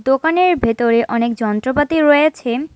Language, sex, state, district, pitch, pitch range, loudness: Bengali, female, West Bengal, Alipurduar, 265 Hz, 235-305 Hz, -15 LUFS